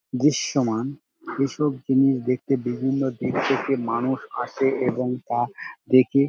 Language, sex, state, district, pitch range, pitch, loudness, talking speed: Bengali, male, West Bengal, Dakshin Dinajpur, 125-135 Hz, 130 Hz, -23 LUFS, 125 wpm